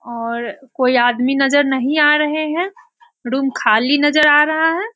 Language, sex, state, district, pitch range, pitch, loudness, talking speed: Hindi, female, Bihar, Sitamarhi, 255-310 Hz, 285 Hz, -15 LUFS, 170 wpm